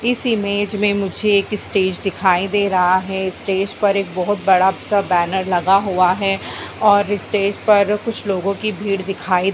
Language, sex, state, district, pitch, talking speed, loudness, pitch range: Hindi, female, Bihar, Bhagalpur, 195 Hz, 180 wpm, -17 LUFS, 190-205 Hz